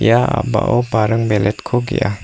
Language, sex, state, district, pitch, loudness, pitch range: Garo, female, Meghalaya, South Garo Hills, 115 Hz, -16 LUFS, 105-120 Hz